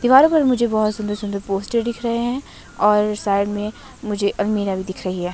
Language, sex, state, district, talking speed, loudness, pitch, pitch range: Hindi, female, Himachal Pradesh, Shimla, 215 wpm, -20 LUFS, 210 Hz, 200-235 Hz